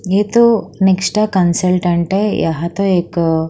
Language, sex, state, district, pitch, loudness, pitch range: Hindi, female, Haryana, Charkhi Dadri, 185 Hz, -14 LUFS, 170-205 Hz